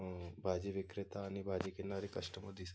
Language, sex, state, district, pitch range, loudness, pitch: Marathi, male, Maharashtra, Nagpur, 90-100 Hz, -43 LUFS, 95 Hz